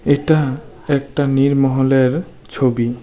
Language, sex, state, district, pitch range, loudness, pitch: Bengali, male, Tripura, West Tripura, 130-145 Hz, -16 LUFS, 135 Hz